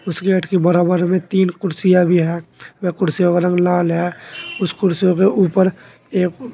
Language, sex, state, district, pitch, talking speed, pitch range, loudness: Hindi, male, Uttar Pradesh, Saharanpur, 180 Hz, 185 wpm, 175-190 Hz, -17 LUFS